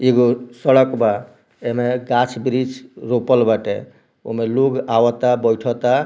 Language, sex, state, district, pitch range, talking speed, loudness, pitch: Bhojpuri, male, Bihar, Muzaffarpur, 120-130 Hz, 110 wpm, -18 LUFS, 125 Hz